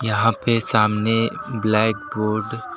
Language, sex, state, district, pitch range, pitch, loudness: Hindi, male, Uttar Pradesh, Lucknow, 105-115 Hz, 110 Hz, -20 LUFS